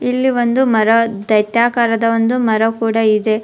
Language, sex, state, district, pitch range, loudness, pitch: Kannada, female, Karnataka, Dharwad, 220-240 Hz, -14 LUFS, 230 Hz